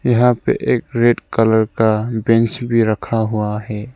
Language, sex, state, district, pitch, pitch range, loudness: Hindi, male, Arunachal Pradesh, Lower Dibang Valley, 115 Hz, 110-120 Hz, -16 LUFS